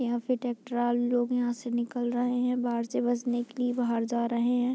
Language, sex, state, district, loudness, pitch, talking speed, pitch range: Hindi, female, Bihar, Muzaffarpur, -29 LUFS, 245 Hz, 225 wpm, 240-245 Hz